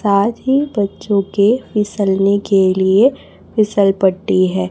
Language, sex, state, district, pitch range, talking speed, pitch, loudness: Hindi, female, Chhattisgarh, Raipur, 195-215 Hz, 125 wpm, 200 Hz, -15 LUFS